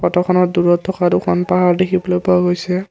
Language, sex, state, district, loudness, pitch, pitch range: Assamese, male, Assam, Kamrup Metropolitan, -15 LUFS, 180 Hz, 175-180 Hz